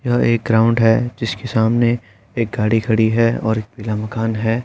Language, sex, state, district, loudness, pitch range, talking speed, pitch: Hindi, male, Uttar Pradesh, Etah, -17 LUFS, 110-115 Hz, 195 wpm, 115 Hz